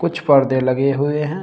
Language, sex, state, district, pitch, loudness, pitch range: Hindi, male, Uttar Pradesh, Shamli, 145 Hz, -17 LUFS, 135-160 Hz